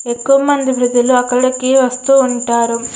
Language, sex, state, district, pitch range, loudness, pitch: Telugu, female, Andhra Pradesh, Srikakulam, 245-265 Hz, -13 LUFS, 250 Hz